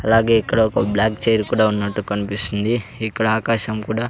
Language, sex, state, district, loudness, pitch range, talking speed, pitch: Telugu, male, Andhra Pradesh, Sri Satya Sai, -19 LUFS, 105-115 Hz, 160 wpm, 110 Hz